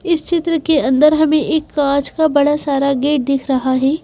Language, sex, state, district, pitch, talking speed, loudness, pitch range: Hindi, female, Madhya Pradesh, Bhopal, 295 Hz, 210 wpm, -15 LUFS, 275-315 Hz